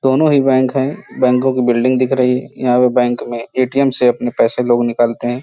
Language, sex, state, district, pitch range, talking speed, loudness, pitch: Hindi, male, Uttar Pradesh, Hamirpur, 120-130 Hz, 230 wpm, -15 LUFS, 125 Hz